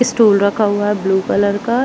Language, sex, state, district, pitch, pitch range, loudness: Hindi, female, Chhattisgarh, Bilaspur, 205 Hz, 200-230 Hz, -15 LUFS